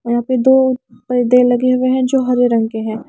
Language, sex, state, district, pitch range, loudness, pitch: Hindi, female, Maharashtra, Mumbai Suburban, 240-255 Hz, -14 LUFS, 250 Hz